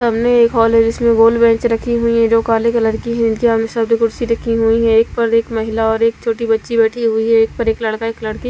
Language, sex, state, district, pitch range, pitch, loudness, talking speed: Hindi, female, Haryana, Rohtak, 225-235 Hz, 230 Hz, -14 LUFS, 280 wpm